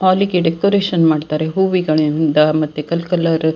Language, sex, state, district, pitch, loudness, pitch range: Kannada, female, Karnataka, Dakshina Kannada, 165 Hz, -16 LUFS, 155-185 Hz